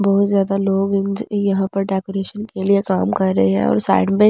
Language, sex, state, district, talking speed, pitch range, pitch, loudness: Hindi, female, Delhi, New Delhi, 225 wpm, 190-200 Hz, 195 Hz, -18 LUFS